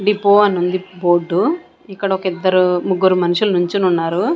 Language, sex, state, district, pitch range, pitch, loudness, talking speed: Telugu, female, Andhra Pradesh, Sri Satya Sai, 180-200 Hz, 185 Hz, -16 LUFS, 150 wpm